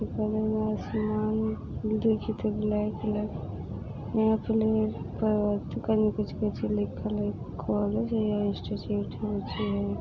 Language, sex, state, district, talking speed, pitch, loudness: Maithili, female, Bihar, Samastipur, 110 wpm, 125 Hz, -29 LUFS